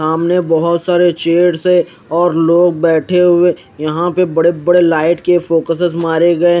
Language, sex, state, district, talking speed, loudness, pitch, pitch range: Hindi, male, Odisha, Khordha, 165 wpm, -12 LUFS, 170 Hz, 165-175 Hz